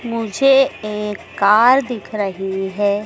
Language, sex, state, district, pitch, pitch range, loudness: Hindi, female, Madhya Pradesh, Dhar, 210 Hz, 200-240 Hz, -17 LUFS